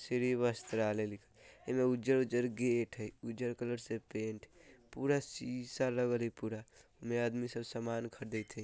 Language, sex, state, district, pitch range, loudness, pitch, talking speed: Bajjika, male, Bihar, Vaishali, 110-125 Hz, -37 LUFS, 120 Hz, 155 wpm